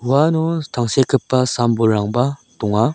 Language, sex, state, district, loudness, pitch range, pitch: Garo, male, Meghalaya, South Garo Hills, -18 LUFS, 115-140 Hz, 125 Hz